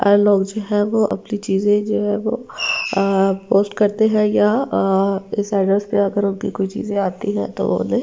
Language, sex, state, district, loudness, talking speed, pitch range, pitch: Hindi, female, Delhi, New Delhi, -18 LUFS, 195 wpm, 195-210 Hz, 205 Hz